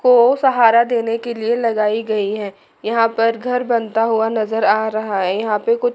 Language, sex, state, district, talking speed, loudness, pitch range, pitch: Hindi, female, Chandigarh, Chandigarh, 200 wpm, -17 LUFS, 215-235 Hz, 225 Hz